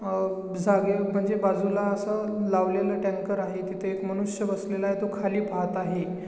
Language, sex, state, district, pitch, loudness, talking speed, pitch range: Marathi, male, Maharashtra, Chandrapur, 195 Hz, -27 LUFS, 165 wpm, 190-200 Hz